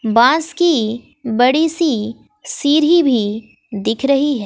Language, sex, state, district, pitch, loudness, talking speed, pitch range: Hindi, female, Bihar, West Champaran, 260 Hz, -15 LUFS, 120 wpm, 225-310 Hz